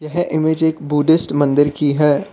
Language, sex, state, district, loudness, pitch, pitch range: Hindi, male, Arunachal Pradesh, Lower Dibang Valley, -15 LUFS, 150 Hz, 145-160 Hz